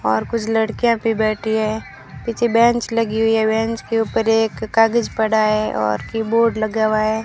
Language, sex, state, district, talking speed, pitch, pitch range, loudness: Hindi, female, Rajasthan, Bikaner, 190 wpm, 225 Hz, 215-230 Hz, -18 LUFS